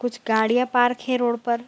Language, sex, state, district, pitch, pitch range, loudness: Hindi, female, Bihar, Bhagalpur, 245 Hz, 235-245 Hz, -21 LUFS